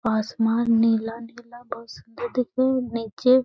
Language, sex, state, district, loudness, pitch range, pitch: Hindi, female, Bihar, Gaya, -23 LUFS, 225-250 Hz, 235 Hz